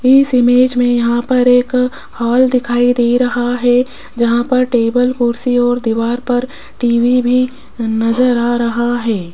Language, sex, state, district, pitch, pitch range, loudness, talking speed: Hindi, female, Rajasthan, Jaipur, 245 Hz, 235-250 Hz, -14 LUFS, 155 wpm